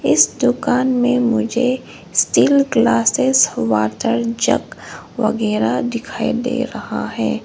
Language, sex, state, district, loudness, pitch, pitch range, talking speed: Hindi, female, Arunachal Pradesh, Longding, -17 LUFS, 235 Hz, 230-250 Hz, 105 wpm